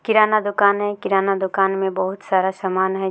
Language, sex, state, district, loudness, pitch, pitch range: Maithili, female, Bihar, Samastipur, -19 LUFS, 195 Hz, 190-205 Hz